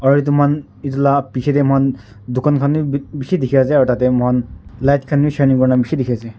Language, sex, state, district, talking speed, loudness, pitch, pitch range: Nagamese, male, Nagaland, Dimapur, 265 wpm, -16 LUFS, 135 Hz, 125-145 Hz